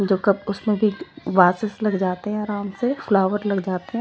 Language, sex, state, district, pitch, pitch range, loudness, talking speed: Hindi, female, Odisha, Malkangiri, 205 Hz, 190-210 Hz, -22 LUFS, 195 wpm